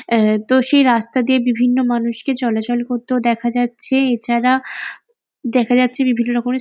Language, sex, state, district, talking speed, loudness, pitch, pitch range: Bengali, female, West Bengal, Jalpaiguri, 155 wpm, -16 LUFS, 245 Hz, 235-255 Hz